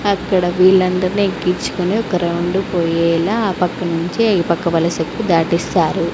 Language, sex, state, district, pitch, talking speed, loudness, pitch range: Telugu, female, Andhra Pradesh, Sri Satya Sai, 180 Hz, 125 wpm, -16 LUFS, 170-190 Hz